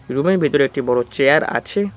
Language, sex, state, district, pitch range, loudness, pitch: Bengali, male, West Bengal, Cooch Behar, 135-155 Hz, -17 LUFS, 140 Hz